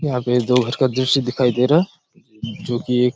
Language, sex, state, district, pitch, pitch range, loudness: Hindi, male, Chhattisgarh, Raigarh, 125 Hz, 125-130 Hz, -19 LUFS